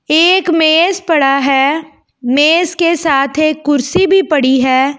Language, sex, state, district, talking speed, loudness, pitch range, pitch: Hindi, female, Delhi, New Delhi, 145 wpm, -11 LUFS, 275-335 Hz, 310 Hz